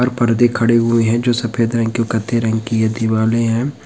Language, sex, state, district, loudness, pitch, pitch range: Hindi, male, Bihar, Sitamarhi, -16 LUFS, 115 Hz, 115-120 Hz